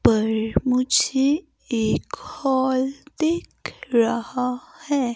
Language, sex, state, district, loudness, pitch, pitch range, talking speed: Hindi, female, Himachal Pradesh, Shimla, -22 LUFS, 260 Hz, 235-290 Hz, 80 wpm